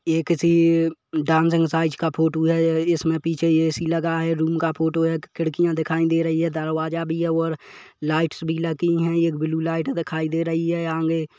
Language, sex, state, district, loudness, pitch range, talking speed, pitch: Hindi, male, Chhattisgarh, Kabirdham, -22 LUFS, 160-165 Hz, 205 wpm, 165 Hz